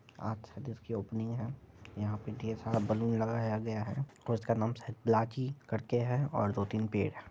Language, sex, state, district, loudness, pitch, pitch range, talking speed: Hindi, male, Bihar, Madhepura, -35 LUFS, 110 Hz, 110-120 Hz, 205 wpm